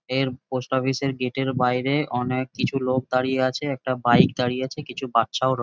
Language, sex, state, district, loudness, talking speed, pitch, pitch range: Bengali, male, West Bengal, Jhargram, -23 LUFS, 205 wpm, 130 Hz, 125-135 Hz